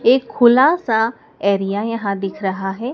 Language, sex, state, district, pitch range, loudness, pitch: Hindi, female, Madhya Pradesh, Dhar, 195-240 Hz, -17 LUFS, 220 Hz